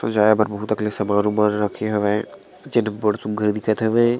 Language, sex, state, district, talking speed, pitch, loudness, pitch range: Chhattisgarhi, male, Chhattisgarh, Sarguja, 185 wpm, 105 Hz, -20 LUFS, 105-110 Hz